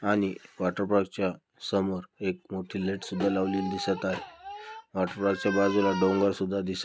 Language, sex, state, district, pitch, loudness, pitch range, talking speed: Marathi, male, Maharashtra, Dhule, 100 Hz, -29 LUFS, 95-100 Hz, 155 wpm